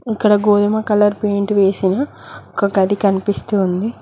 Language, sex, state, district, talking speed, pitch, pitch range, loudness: Telugu, female, Telangana, Mahabubabad, 135 wpm, 205 Hz, 200-210 Hz, -16 LUFS